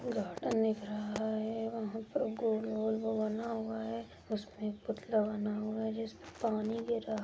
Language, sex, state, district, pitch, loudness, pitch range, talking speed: Hindi, female, Chhattisgarh, Kabirdham, 220 Hz, -36 LUFS, 215-225 Hz, 190 wpm